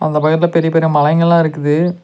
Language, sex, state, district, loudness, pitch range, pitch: Tamil, male, Tamil Nadu, Nilgiris, -13 LUFS, 150-170 Hz, 160 Hz